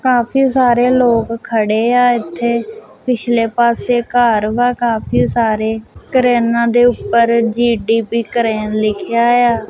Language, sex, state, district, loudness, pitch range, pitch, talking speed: Punjabi, female, Punjab, Kapurthala, -14 LUFS, 225-245 Hz, 235 Hz, 115 wpm